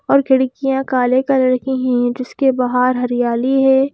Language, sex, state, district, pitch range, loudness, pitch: Hindi, female, Madhya Pradesh, Bhopal, 250-270 Hz, -16 LUFS, 255 Hz